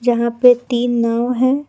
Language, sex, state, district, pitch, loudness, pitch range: Hindi, female, Jharkhand, Palamu, 245 Hz, -15 LUFS, 235-250 Hz